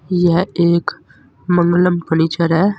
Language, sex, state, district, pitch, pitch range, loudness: Hindi, male, Uttar Pradesh, Saharanpur, 175 Hz, 170-180 Hz, -15 LUFS